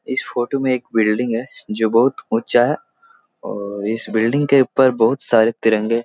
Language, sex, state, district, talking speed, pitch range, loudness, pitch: Hindi, male, Bihar, Jahanabad, 190 wpm, 110-130 Hz, -18 LUFS, 115 Hz